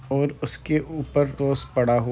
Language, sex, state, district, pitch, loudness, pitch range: Hindi, male, Uttar Pradesh, Deoria, 140 Hz, -24 LUFS, 130-145 Hz